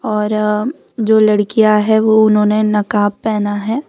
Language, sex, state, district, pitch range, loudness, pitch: Hindi, female, Gujarat, Valsad, 210-220 Hz, -14 LUFS, 215 Hz